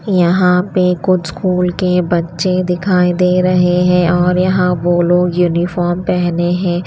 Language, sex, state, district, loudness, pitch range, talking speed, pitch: Hindi, female, Himachal Pradesh, Shimla, -14 LUFS, 175-180 Hz, 150 wpm, 180 Hz